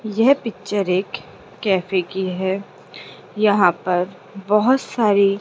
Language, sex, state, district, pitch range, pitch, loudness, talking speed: Hindi, female, Rajasthan, Jaipur, 185-210 Hz, 200 Hz, -19 LUFS, 110 wpm